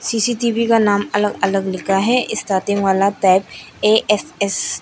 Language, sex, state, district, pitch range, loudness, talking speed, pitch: Hindi, female, Arunachal Pradesh, Lower Dibang Valley, 195-225 Hz, -17 LUFS, 110 wpm, 205 Hz